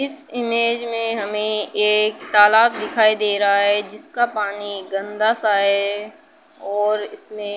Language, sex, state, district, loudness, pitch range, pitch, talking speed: Hindi, female, Uttar Pradesh, Budaun, -18 LUFS, 205-230 Hz, 210 Hz, 145 wpm